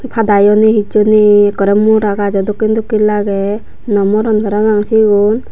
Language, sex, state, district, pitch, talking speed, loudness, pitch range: Chakma, female, Tripura, Unakoti, 210 Hz, 150 wpm, -11 LUFS, 205-215 Hz